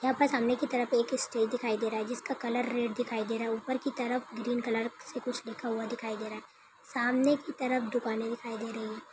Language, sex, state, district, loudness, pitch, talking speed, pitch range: Hindi, female, Chhattisgarh, Bilaspur, -32 LUFS, 240 Hz, 255 wpm, 225-255 Hz